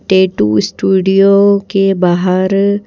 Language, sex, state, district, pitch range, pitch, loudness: Hindi, female, Madhya Pradesh, Bhopal, 185-200 Hz, 190 Hz, -11 LUFS